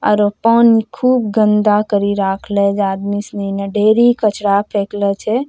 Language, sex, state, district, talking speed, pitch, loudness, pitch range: Angika, female, Bihar, Bhagalpur, 155 wpm, 205 Hz, -15 LUFS, 200-220 Hz